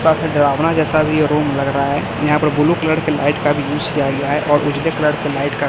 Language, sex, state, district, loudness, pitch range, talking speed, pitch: Hindi, male, Chhattisgarh, Raipur, -16 LUFS, 145-155 Hz, 305 wpm, 150 Hz